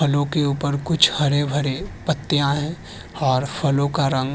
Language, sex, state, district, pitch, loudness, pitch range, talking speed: Hindi, male, Uttar Pradesh, Hamirpur, 145 Hz, -21 LUFS, 140-150 Hz, 180 wpm